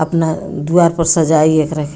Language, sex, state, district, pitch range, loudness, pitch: Bhojpuri, female, Bihar, Muzaffarpur, 155-165 Hz, -14 LUFS, 160 Hz